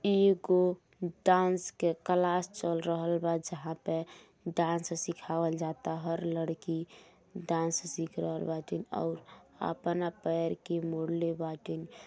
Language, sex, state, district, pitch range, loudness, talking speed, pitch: Bhojpuri, female, Uttar Pradesh, Gorakhpur, 165-175 Hz, -33 LUFS, 120 wpm, 170 Hz